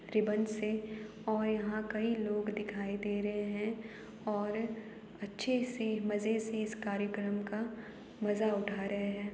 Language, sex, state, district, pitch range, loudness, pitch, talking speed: Hindi, female, Uttar Pradesh, Jalaun, 205-220 Hz, -36 LUFS, 215 Hz, 140 wpm